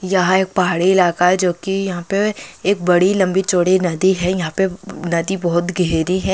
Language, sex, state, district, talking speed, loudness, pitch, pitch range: Hindi, female, Andhra Pradesh, Krishna, 105 wpm, -17 LUFS, 185 Hz, 175-190 Hz